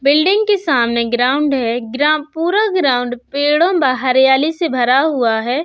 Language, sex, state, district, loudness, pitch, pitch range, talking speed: Hindi, female, Uttar Pradesh, Budaun, -15 LUFS, 275 Hz, 245-325 Hz, 150 wpm